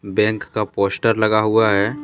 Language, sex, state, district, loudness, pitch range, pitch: Hindi, male, Jharkhand, Deoghar, -18 LUFS, 100-110 Hz, 110 Hz